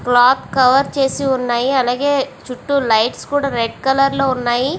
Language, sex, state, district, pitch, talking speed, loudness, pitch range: Telugu, female, Andhra Pradesh, Visakhapatnam, 265 Hz, 150 wpm, -16 LUFS, 245-275 Hz